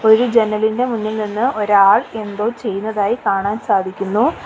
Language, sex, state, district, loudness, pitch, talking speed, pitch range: Malayalam, female, Kerala, Kollam, -17 LUFS, 215 Hz, 120 wpm, 205-225 Hz